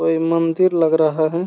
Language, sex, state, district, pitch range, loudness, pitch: Hindi, female, Bihar, Araria, 160-170 Hz, -17 LUFS, 165 Hz